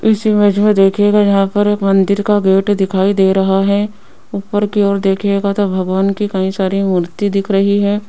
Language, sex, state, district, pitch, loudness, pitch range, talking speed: Hindi, female, Rajasthan, Jaipur, 200 Hz, -13 LUFS, 195-205 Hz, 200 wpm